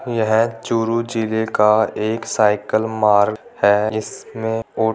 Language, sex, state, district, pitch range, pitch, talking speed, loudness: Hindi, male, Rajasthan, Churu, 105-115 Hz, 110 Hz, 120 wpm, -18 LUFS